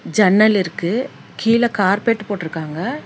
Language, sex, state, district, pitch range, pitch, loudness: Tamil, female, Karnataka, Bangalore, 180-230 Hz, 205 Hz, -17 LUFS